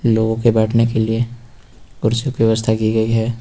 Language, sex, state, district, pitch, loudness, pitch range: Hindi, male, Uttar Pradesh, Lucknow, 115 Hz, -17 LUFS, 110-115 Hz